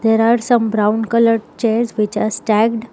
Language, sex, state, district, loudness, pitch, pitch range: English, female, Telangana, Hyderabad, -16 LUFS, 225 Hz, 215-230 Hz